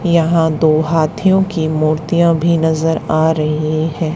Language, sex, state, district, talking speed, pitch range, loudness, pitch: Hindi, female, Haryana, Charkhi Dadri, 145 wpm, 155-170 Hz, -14 LUFS, 160 Hz